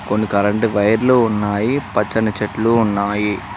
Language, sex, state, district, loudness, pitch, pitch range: Telugu, male, Telangana, Mahabubabad, -17 LUFS, 105 Hz, 105-115 Hz